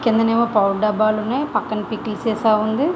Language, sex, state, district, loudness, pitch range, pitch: Telugu, female, Andhra Pradesh, Visakhapatnam, -19 LUFS, 215-230 Hz, 220 Hz